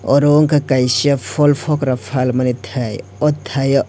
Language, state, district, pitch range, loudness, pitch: Kokborok, Tripura, West Tripura, 125-145 Hz, -16 LUFS, 135 Hz